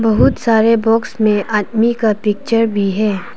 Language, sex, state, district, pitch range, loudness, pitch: Hindi, female, Arunachal Pradesh, Papum Pare, 210-230 Hz, -15 LUFS, 220 Hz